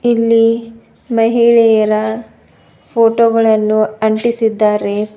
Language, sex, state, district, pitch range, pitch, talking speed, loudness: Kannada, female, Karnataka, Bidar, 215-230 Hz, 225 Hz, 60 wpm, -13 LUFS